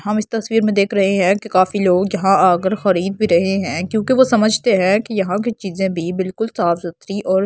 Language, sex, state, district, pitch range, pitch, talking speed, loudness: Hindi, female, Delhi, New Delhi, 185-215 Hz, 195 Hz, 240 wpm, -17 LUFS